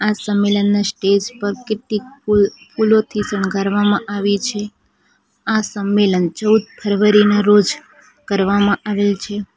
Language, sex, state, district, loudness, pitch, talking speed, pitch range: Gujarati, female, Gujarat, Valsad, -17 LUFS, 205 Hz, 120 wpm, 200-215 Hz